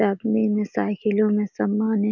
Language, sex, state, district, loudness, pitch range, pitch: Hindi, female, Bihar, Jamui, -22 LUFS, 210-215 Hz, 210 Hz